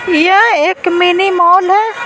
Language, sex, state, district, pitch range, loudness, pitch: Hindi, female, Bihar, Patna, 355-390 Hz, -10 LUFS, 370 Hz